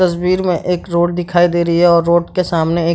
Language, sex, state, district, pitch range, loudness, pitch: Hindi, male, Bihar, Madhepura, 170-180 Hz, -14 LUFS, 175 Hz